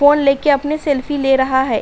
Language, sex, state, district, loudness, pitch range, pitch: Hindi, female, Uttar Pradesh, Hamirpur, -15 LUFS, 265-290 Hz, 280 Hz